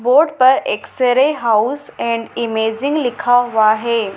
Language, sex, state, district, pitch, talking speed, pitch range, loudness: Hindi, female, Madhya Pradesh, Dhar, 245 Hz, 145 wpm, 225-265 Hz, -16 LUFS